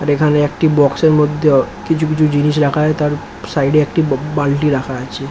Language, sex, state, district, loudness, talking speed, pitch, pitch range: Bengali, male, West Bengal, Kolkata, -15 LUFS, 225 wpm, 150 Hz, 145-150 Hz